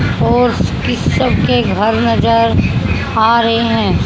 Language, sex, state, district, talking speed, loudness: Hindi, female, Haryana, Rohtak, 135 wpm, -13 LUFS